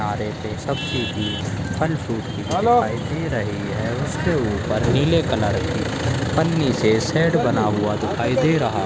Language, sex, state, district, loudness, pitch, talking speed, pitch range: Hindi, male, Goa, North and South Goa, -21 LUFS, 120 Hz, 185 wpm, 105-150 Hz